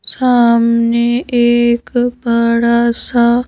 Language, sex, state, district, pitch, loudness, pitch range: Hindi, female, Madhya Pradesh, Bhopal, 235 Hz, -13 LUFS, 235-245 Hz